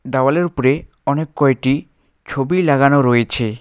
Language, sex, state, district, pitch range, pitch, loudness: Bengali, male, West Bengal, Alipurduar, 130-145 Hz, 140 Hz, -16 LUFS